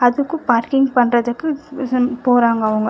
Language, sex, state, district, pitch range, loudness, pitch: Tamil, female, Karnataka, Bangalore, 235-270 Hz, -17 LUFS, 245 Hz